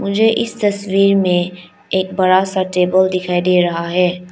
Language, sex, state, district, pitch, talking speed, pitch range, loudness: Hindi, female, Arunachal Pradesh, Lower Dibang Valley, 185 Hz, 165 wpm, 180-195 Hz, -15 LUFS